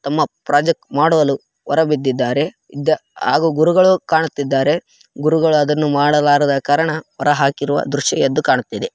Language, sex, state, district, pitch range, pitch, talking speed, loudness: Kannada, male, Karnataka, Raichur, 145-160 Hz, 150 Hz, 100 wpm, -16 LUFS